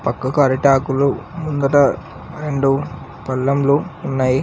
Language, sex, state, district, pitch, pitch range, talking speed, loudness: Telugu, male, Telangana, Karimnagar, 135 Hz, 130-145 Hz, 95 wpm, -18 LUFS